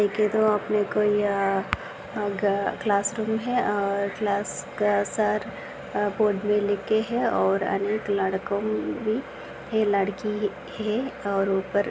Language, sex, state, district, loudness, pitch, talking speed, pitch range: Hindi, female, Maharashtra, Aurangabad, -25 LUFS, 205 Hz, 145 wpm, 200-215 Hz